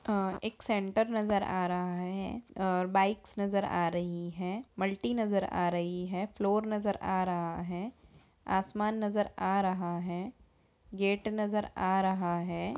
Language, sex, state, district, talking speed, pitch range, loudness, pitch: Hindi, female, Bihar, Purnia, 155 wpm, 180-210 Hz, -32 LUFS, 195 Hz